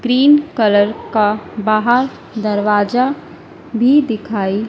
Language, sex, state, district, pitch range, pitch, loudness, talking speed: Hindi, female, Madhya Pradesh, Dhar, 210-250 Hz, 220 Hz, -15 LUFS, 90 wpm